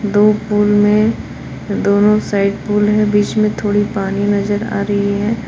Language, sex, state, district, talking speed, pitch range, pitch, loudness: Hindi, female, Jharkhand, Palamu, 175 wpm, 205-210 Hz, 205 Hz, -15 LUFS